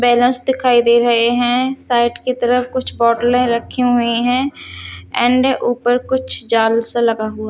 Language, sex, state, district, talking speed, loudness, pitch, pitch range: Hindi, female, Haryana, Charkhi Dadri, 160 wpm, -15 LUFS, 240 Hz, 235-250 Hz